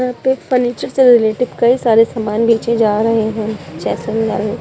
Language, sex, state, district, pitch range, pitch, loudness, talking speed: Hindi, female, Punjab, Pathankot, 220-245 Hz, 225 Hz, -15 LUFS, 180 wpm